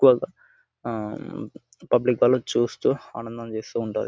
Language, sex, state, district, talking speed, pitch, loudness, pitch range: Telugu, male, Telangana, Nalgonda, 90 wpm, 115 Hz, -25 LUFS, 110-125 Hz